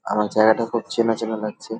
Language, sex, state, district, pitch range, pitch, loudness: Bengali, male, West Bengal, Dakshin Dinajpur, 110-115 Hz, 110 Hz, -21 LUFS